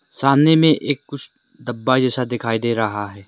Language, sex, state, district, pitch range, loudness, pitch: Hindi, male, Arunachal Pradesh, Lower Dibang Valley, 115-140 Hz, -17 LUFS, 125 Hz